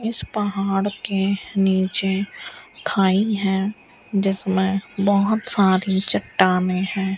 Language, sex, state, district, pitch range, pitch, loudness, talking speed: Hindi, female, Rajasthan, Bikaner, 190-205 Hz, 195 Hz, -20 LUFS, 90 wpm